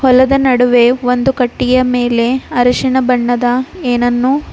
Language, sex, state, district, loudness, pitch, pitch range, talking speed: Kannada, female, Karnataka, Bidar, -12 LUFS, 250 Hz, 245-260 Hz, 105 wpm